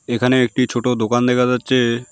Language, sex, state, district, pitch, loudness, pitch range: Bengali, male, West Bengal, Alipurduar, 125 Hz, -17 LUFS, 120-125 Hz